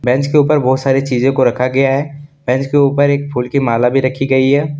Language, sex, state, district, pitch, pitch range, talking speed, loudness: Hindi, male, Jharkhand, Deoghar, 135 Hz, 130-145 Hz, 265 wpm, -14 LUFS